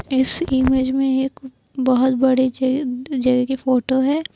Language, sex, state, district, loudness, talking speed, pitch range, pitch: Hindi, female, Uttar Pradesh, Lucknow, -18 LUFS, 150 wpm, 260-265 Hz, 260 Hz